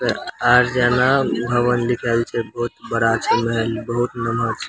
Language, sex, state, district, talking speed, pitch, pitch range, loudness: Maithili, male, Bihar, Samastipur, 155 wpm, 120 Hz, 115-120 Hz, -19 LUFS